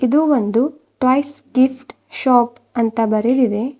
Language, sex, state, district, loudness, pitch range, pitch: Kannada, female, Karnataka, Bidar, -17 LUFS, 235-270 Hz, 255 Hz